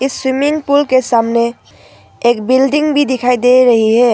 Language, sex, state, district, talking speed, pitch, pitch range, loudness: Hindi, female, Arunachal Pradesh, Papum Pare, 160 wpm, 255 Hz, 240-275 Hz, -12 LUFS